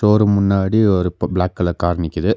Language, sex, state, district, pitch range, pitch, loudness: Tamil, male, Tamil Nadu, Nilgiris, 90-105 Hz, 90 Hz, -17 LUFS